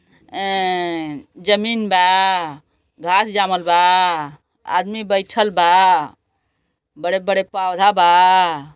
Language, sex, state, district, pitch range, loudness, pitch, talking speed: Bhojpuri, female, Uttar Pradesh, Gorakhpur, 170-195 Hz, -16 LUFS, 185 Hz, 80 wpm